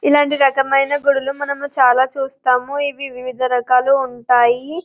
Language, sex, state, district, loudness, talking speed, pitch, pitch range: Telugu, female, Telangana, Karimnagar, -16 LUFS, 125 wpm, 270 Hz, 255-280 Hz